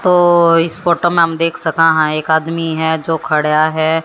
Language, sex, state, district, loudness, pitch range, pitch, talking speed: Hindi, female, Haryana, Jhajjar, -13 LUFS, 160-170 Hz, 165 Hz, 205 wpm